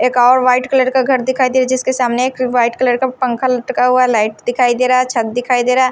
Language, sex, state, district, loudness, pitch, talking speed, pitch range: Hindi, female, Himachal Pradesh, Shimla, -14 LUFS, 255 Hz, 285 wpm, 245-260 Hz